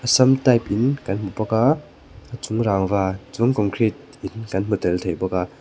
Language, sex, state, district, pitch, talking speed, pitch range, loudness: Mizo, male, Mizoram, Aizawl, 110 Hz, 205 wpm, 95-125 Hz, -21 LUFS